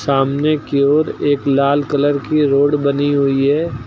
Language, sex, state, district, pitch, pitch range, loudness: Hindi, male, Uttar Pradesh, Lucknow, 145 Hz, 140-145 Hz, -15 LUFS